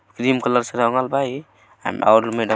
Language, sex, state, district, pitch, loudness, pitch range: Hindi, male, Bihar, Gopalganj, 120 Hz, -19 LUFS, 115-130 Hz